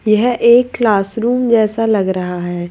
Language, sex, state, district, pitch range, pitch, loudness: Hindi, female, Madhya Pradesh, Bhopal, 190-235 Hz, 220 Hz, -14 LUFS